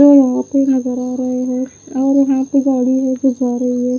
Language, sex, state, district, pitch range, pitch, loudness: Hindi, female, Punjab, Pathankot, 255-270 Hz, 260 Hz, -15 LUFS